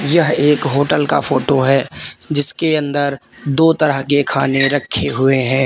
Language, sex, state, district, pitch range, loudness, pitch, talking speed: Hindi, male, Uttar Pradesh, Lalitpur, 135-150 Hz, -15 LUFS, 145 Hz, 160 wpm